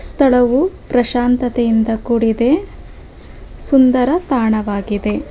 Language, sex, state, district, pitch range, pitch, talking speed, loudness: Kannada, female, Karnataka, Bangalore, 225-260 Hz, 245 Hz, 55 wpm, -15 LUFS